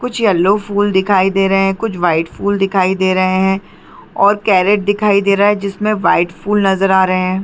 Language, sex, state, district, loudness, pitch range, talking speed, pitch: Hindi, female, Chhattisgarh, Bilaspur, -14 LUFS, 190-205 Hz, 215 wpm, 195 Hz